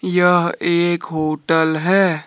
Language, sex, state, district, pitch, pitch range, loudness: Hindi, male, Jharkhand, Deoghar, 170 Hz, 160-180 Hz, -17 LUFS